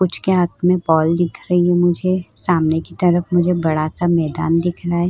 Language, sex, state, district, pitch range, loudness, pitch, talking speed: Hindi, female, Uttar Pradesh, Muzaffarnagar, 165-180 Hz, -17 LUFS, 175 Hz, 210 wpm